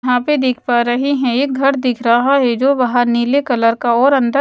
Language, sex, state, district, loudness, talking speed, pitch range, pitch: Hindi, female, Odisha, Sambalpur, -14 LUFS, 245 wpm, 240-275 Hz, 250 Hz